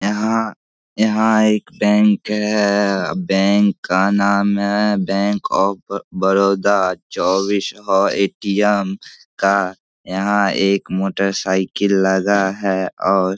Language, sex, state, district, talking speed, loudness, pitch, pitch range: Hindi, male, Bihar, Samastipur, 105 wpm, -17 LUFS, 100 Hz, 95-105 Hz